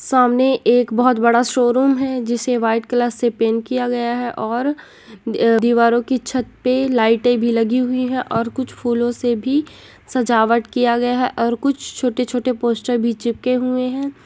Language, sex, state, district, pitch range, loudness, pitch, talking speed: Hindi, female, Bihar, Gopalganj, 235-255 Hz, -18 LUFS, 245 Hz, 170 wpm